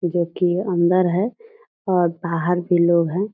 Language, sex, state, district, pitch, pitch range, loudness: Hindi, female, Bihar, Purnia, 180 Hz, 175-190 Hz, -20 LUFS